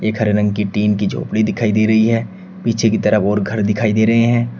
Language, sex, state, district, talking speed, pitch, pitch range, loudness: Hindi, male, Uttar Pradesh, Shamli, 260 wpm, 110 Hz, 105-115 Hz, -16 LUFS